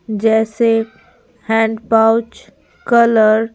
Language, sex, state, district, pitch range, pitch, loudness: Hindi, female, Bihar, Patna, 220-230 Hz, 225 Hz, -14 LUFS